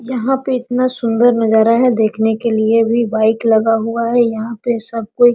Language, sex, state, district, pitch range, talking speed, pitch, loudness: Hindi, female, Jharkhand, Sahebganj, 225-240 Hz, 210 wpm, 230 Hz, -15 LUFS